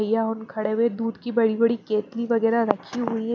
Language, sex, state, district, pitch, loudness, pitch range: Hindi, female, Maharashtra, Mumbai Suburban, 230 Hz, -24 LUFS, 225-235 Hz